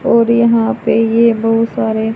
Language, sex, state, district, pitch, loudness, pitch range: Hindi, female, Haryana, Charkhi Dadri, 225 Hz, -13 LUFS, 225-235 Hz